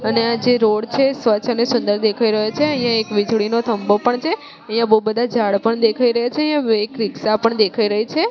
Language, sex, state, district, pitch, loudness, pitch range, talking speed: Gujarati, female, Gujarat, Gandhinagar, 230 Hz, -17 LUFS, 215-245 Hz, 225 wpm